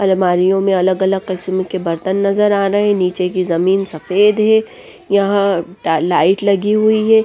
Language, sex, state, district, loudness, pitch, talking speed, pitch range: Hindi, female, Bihar, West Champaran, -15 LUFS, 195 Hz, 175 wpm, 185-200 Hz